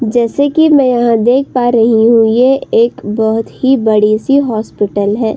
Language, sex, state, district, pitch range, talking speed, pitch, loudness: Hindi, female, Uttar Pradesh, Budaun, 220-260 Hz, 180 wpm, 230 Hz, -11 LUFS